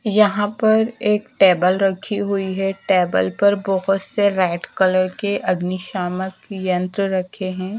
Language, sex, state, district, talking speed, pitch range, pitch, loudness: Hindi, female, Madhya Pradesh, Dhar, 145 wpm, 185-205 Hz, 195 Hz, -19 LUFS